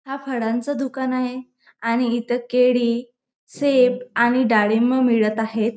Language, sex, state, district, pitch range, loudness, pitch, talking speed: Marathi, female, Maharashtra, Dhule, 230-255 Hz, -20 LUFS, 245 Hz, 125 wpm